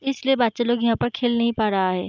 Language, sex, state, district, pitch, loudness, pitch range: Hindi, female, Bihar, Sitamarhi, 235 Hz, -21 LUFS, 220-245 Hz